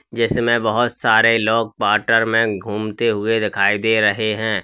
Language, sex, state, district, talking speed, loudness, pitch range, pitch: Hindi, male, Uttar Pradesh, Lalitpur, 170 wpm, -17 LUFS, 105-115 Hz, 110 Hz